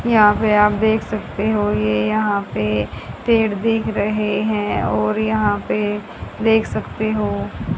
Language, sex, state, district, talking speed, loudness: Hindi, female, Haryana, Charkhi Dadri, 145 wpm, -19 LUFS